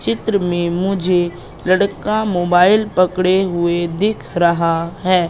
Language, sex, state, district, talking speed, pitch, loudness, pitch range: Hindi, female, Madhya Pradesh, Katni, 125 wpm, 180 Hz, -16 LUFS, 170-190 Hz